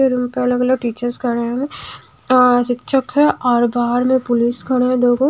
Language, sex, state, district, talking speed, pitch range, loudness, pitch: Hindi, female, Bihar, Katihar, 180 wpm, 240-260 Hz, -16 LUFS, 250 Hz